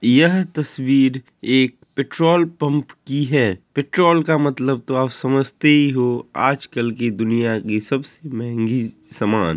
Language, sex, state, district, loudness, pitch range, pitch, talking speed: Hindi, male, Bihar, Kishanganj, -19 LUFS, 120-145 Hz, 135 Hz, 145 wpm